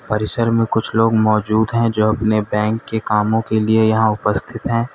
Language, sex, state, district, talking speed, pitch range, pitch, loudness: Hindi, male, Uttar Pradesh, Lalitpur, 180 wpm, 110-115 Hz, 110 Hz, -17 LUFS